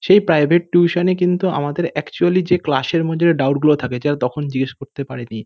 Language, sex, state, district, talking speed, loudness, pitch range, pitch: Bengali, male, West Bengal, North 24 Parganas, 220 wpm, -17 LUFS, 140-175 Hz, 155 Hz